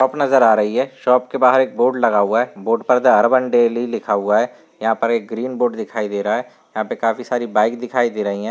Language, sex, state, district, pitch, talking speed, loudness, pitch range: Hindi, male, Uttar Pradesh, Varanasi, 120 Hz, 265 wpm, -17 LUFS, 105-125 Hz